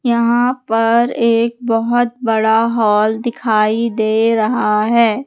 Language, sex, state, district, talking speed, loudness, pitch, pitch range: Hindi, female, Madhya Pradesh, Katni, 115 wpm, -15 LUFS, 230 Hz, 220-235 Hz